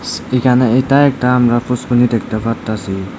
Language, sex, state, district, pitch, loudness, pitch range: Bengali, male, Tripura, West Tripura, 125 Hz, -14 LUFS, 115-125 Hz